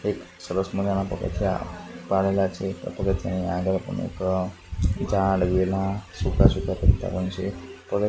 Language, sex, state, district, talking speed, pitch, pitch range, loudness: Gujarati, male, Gujarat, Gandhinagar, 135 wpm, 95 Hz, 90-95 Hz, -25 LUFS